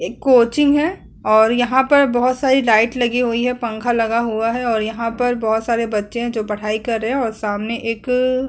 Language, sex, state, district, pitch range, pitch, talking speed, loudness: Hindi, female, Uttar Pradesh, Budaun, 225-250 Hz, 235 Hz, 220 wpm, -17 LUFS